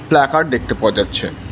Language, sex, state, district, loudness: Bengali, male, West Bengal, Alipurduar, -16 LUFS